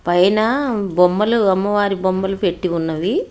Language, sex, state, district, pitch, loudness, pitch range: Telugu, female, Telangana, Hyderabad, 195 Hz, -17 LUFS, 180-215 Hz